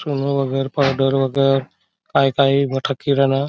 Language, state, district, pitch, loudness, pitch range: Bhili, Maharashtra, Dhule, 135 Hz, -18 LUFS, 135-140 Hz